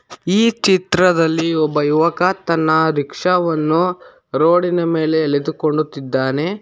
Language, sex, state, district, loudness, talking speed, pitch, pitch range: Kannada, male, Karnataka, Bangalore, -16 LUFS, 80 wpm, 165 Hz, 155-180 Hz